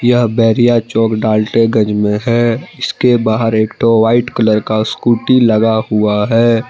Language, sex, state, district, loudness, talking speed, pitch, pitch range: Hindi, male, Jharkhand, Palamu, -12 LUFS, 150 wpm, 115 Hz, 110-120 Hz